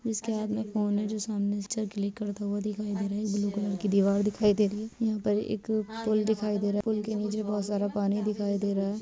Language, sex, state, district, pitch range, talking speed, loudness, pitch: Hindi, female, Jharkhand, Jamtara, 205-215 Hz, 275 wpm, -29 LUFS, 210 Hz